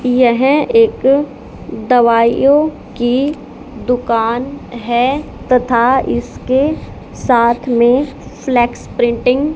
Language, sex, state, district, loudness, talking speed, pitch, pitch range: Hindi, female, Haryana, Charkhi Dadri, -14 LUFS, 80 wpm, 250 Hz, 235-270 Hz